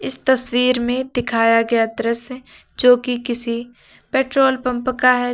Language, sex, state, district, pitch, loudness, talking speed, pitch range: Hindi, female, Uttar Pradesh, Lucknow, 245 Hz, -18 LUFS, 145 wpm, 235-255 Hz